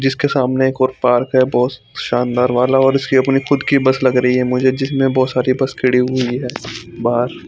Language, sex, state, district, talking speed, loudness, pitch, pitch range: Hindi, male, Chandigarh, Chandigarh, 215 wpm, -15 LUFS, 130 Hz, 125-135 Hz